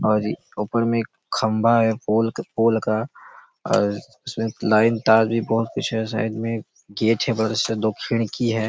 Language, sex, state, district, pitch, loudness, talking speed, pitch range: Hindi, male, Chhattisgarh, Raigarh, 110 Hz, -22 LUFS, 165 wpm, 110-115 Hz